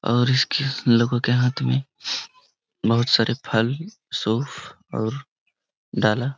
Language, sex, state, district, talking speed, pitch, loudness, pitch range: Hindi, male, Jharkhand, Sahebganj, 115 wpm, 125 Hz, -22 LUFS, 115-140 Hz